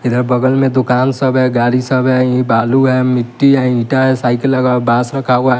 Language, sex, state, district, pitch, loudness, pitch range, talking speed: Hindi, male, Bihar, West Champaran, 125 Hz, -13 LUFS, 125-130 Hz, 245 wpm